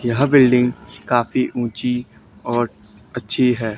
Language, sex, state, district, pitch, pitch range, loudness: Hindi, male, Haryana, Charkhi Dadri, 120 Hz, 115-125 Hz, -18 LUFS